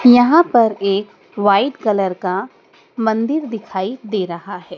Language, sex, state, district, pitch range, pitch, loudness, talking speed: Hindi, female, Madhya Pradesh, Dhar, 195-245 Hz, 210 Hz, -17 LUFS, 140 wpm